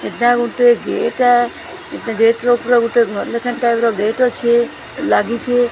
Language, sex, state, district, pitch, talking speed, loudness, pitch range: Odia, female, Odisha, Sambalpur, 240 Hz, 135 wpm, -15 LUFS, 235-245 Hz